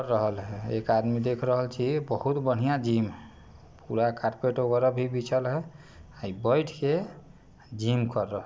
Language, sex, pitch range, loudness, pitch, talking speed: Bajjika, male, 110-130 Hz, -28 LUFS, 125 Hz, 155 wpm